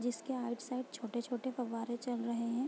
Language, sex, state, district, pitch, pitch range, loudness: Hindi, female, Bihar, Gopalganj, 240 Hz, 235-255 Hz, -39 LUFS